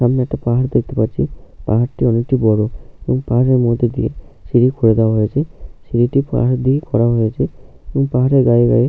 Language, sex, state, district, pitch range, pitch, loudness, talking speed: Bengali, male, West Bengal, Jhargram, 115-130 Hz, 120 Hz, -16 LUFS, 170 wpm